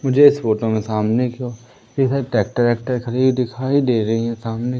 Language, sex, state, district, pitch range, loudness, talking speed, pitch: Hindi, male, Madhya Pradesh, Umaria, 115-130 Hz, -18 LUFS, 210 wpm, 120 Hz